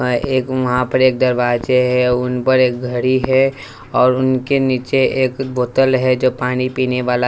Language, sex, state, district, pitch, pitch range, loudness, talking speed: Hindi, male, Bihar, West Champaran, 130 Hz, 125-130 Hz, -16 LUFS, 175 wpm